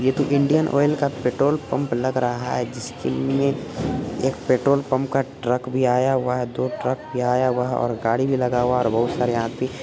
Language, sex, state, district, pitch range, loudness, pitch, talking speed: Hindi, male, Bihar, Supaul, 125-135 Hz, -22 LUFS, 125 Hz, 225 wpm